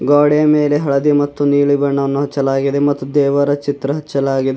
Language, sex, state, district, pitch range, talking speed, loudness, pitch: Kannada, male, Karnataka, Bidar, 140-145 Hz, 145 wpm, -15 LUFS, 145 Hz